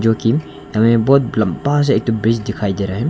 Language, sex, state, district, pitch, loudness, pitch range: Hindi, male, Arunachal Pradesh, Longding, 115 Hz, -16 LUFS, 105-125 Hz